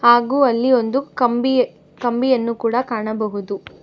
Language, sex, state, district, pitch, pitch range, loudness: Kannada, female, Karnataka, Bangalore, 240 Hz, 225-255 Hz, -18 LUFS